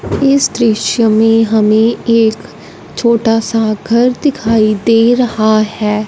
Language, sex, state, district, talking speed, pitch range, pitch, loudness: Hindi, female, Punjab, Fazilka, 120 wpm, 215-235 Hz, 225 Hz, -11 LUFS